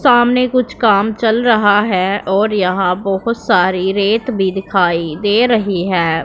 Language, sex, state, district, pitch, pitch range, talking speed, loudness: Hindi, female, Punjab, Pathankot, 200 Hz, 185-230 Hz, 155 wpm, -14 LUFS